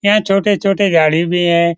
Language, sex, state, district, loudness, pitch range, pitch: Hindi, male, Bihar, Lakhisarai, -13 LUFS, 170-200 Hz, 180 Hz